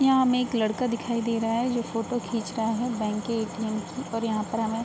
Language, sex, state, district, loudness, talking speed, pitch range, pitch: Hindi, female, Bihar, Araria, -27 LUFS, 275 wpm, 220-240 Hz, 230 Hz